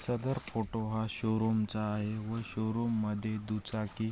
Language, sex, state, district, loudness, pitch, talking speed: Marathi, male, Maharashtra, Aurangabad, -34 LUFS, 110 Hz, 175 wpm